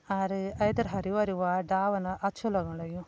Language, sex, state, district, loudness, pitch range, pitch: Garhwali, female, Uttarakhand, Tehri Garhwal, -30 LUFS, 185-200 Hz, 195 Hz